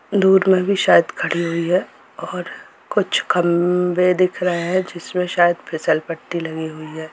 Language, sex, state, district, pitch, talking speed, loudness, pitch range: Hindi, female, Jharkhand, Jamtara, 175 Hz, 185 wpm, -19 LUFS, 170-185 Hz